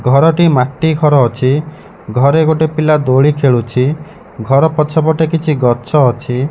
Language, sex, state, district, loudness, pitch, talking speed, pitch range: Odia, male, Odisha, Malkangiri, -12 LUFS, 150 Hz, 140 wpm, 130-160 Hz